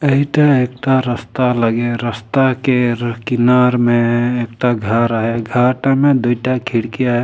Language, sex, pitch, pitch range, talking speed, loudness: Sadri, male, 120 Hz, 120-130 Hz, 165 wpm, -15 LUFS